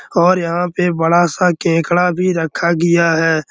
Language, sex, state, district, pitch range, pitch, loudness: Hindi, male, Bihar, Araria, 165-180 Hz, 170 Hz, -15 LUFS